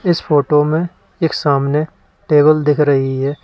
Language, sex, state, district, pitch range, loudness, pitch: Hindi, male, Uttar Pradesh, Lalitpur, 145-155 Hz, -15 LUFS, 150 Hz